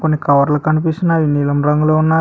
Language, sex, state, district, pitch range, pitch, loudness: Telugu, male, Telangana, Hyderabad, 145-160 Hz, 155 Hz, -14 LUFS